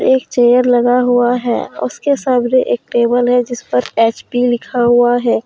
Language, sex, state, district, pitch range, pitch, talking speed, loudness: Hindi, female, Jharkhand, Deoghar, 240-250 Hz, 245 Hz, 175 wpm, -14 LUFS